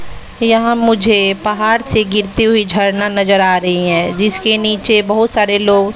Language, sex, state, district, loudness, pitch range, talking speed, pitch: Hindi, female, Bihar, West Champaran, -12 LUFS, 200-225 Hz, 160 wpm, 210 Hz